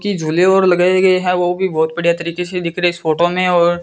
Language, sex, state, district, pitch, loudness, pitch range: Hindi, female, Rajasthan, Bikaner, 175 Hz, -15 LUFS, 170-185 Hz